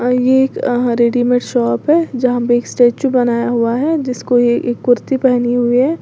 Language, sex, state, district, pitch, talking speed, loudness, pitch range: Hindi, female, Uttar Pradesh, Lalitpur, 245 Hz, 180 wpm, -14 LUFS, 240-260 Hz